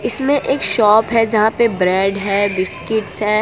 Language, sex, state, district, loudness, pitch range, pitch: Hindi, female, Gujarat, Valsad, -15 LUFS, 200-235 Hz, 215 Hz